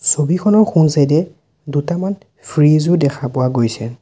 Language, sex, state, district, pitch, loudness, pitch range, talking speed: Assamese, male, Assam, Sonitpur, 150 Hz, -15 LUFS, 140-175 Hz, 150 wpm